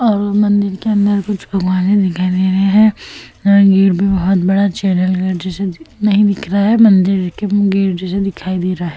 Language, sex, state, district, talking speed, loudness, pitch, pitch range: Hindi, female, Uttar Pradesh, Etah, 195 wpm, -14 LUFS, 195 Hz, 185-205 Hz